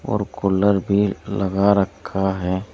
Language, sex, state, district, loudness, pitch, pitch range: Hindi, male, Uttar Pradesh, Saharanpur, -20 LUFS, 100 Hz, 95-100 Hz